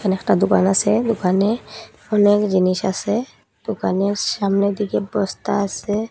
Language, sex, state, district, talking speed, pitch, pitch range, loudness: Bengali, female, Assam, Hailakandi, 120 wpm, 200 Hz, 195-210 Hz, -19 LUFS